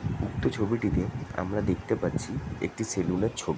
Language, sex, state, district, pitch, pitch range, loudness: Bengali, male, West Bengal, Jhargram, 105 Hz, 95-120 Hz, -30 LUFS